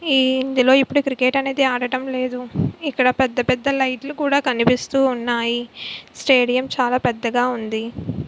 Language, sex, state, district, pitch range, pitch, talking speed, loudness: Telugu, female, Andhra Pradesh, Visakhapatnam, 245-270 Hz, 255 Hz, 125 wpm, -19 LUFS